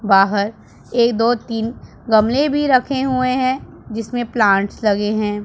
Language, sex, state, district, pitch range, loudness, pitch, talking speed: Hindi, female, Punjab, Pathankot, 210-255 Hz, -17 LUFS, 230 Hz, 145 wpm